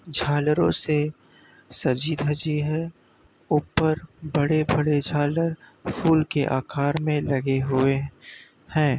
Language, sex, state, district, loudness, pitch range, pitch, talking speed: Hindi, male, Uttar Pradesh, Muzaffarnagar, -24 LUFS, 140-155 Hz, 150 Hz, 100 wpm